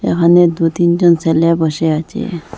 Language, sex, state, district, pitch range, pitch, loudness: Bengali, female, Assam, Hailakandi, 160-175 Hz, 170 Hz, -13 LUFS